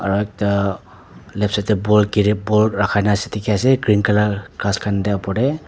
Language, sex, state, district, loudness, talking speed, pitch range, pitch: Nagamese, male, Nagaland, Dimapur, -18 LUFS, 160 wpm, 100-105 Hz, 105 Hz